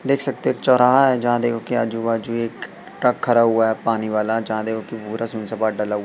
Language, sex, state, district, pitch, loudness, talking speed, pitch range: Hindi, male, Madhya Pradesh, Katni, 115 Hz, -20 LUFS, 275 wpm, 110-120 Hz